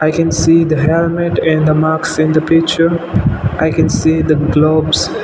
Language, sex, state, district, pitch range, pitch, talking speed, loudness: English, male, Nagaland, Dimapur, 155-165 Hz, 160 Hz, 185 wpm, -13 LUFS